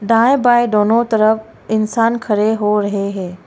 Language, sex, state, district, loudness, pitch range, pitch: Hindi, female, Arunachal Pradesh, Longding, -15 LUFS, 210-230 Hz, 220 Hz